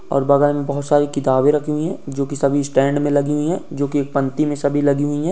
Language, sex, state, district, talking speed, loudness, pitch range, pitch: Hindi, female, Uttar Pradesh, Jyotiba Phule Nagar, 260 wpm, -18 LUFS, 140-145 Hz, 145 Hz